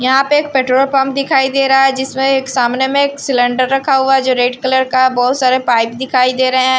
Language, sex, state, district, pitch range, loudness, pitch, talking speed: Hindi, female, Bihar, Patna, 255-270 Hz, -13 LUFS, 265 Hz, 245 wpm